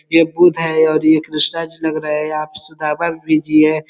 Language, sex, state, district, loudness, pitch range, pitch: Hindi, male, Uttar Pradesh, Ghazipur, -16 LUFS, 155-165 Hz, 155 Hz